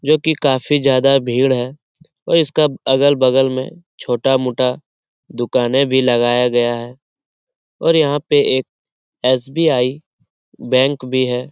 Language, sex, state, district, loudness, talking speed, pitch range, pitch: Hindi, male, Bihar, Lakhisarai, -16 LUFS, 125 wpm, 125-145 Hz, 130 Hz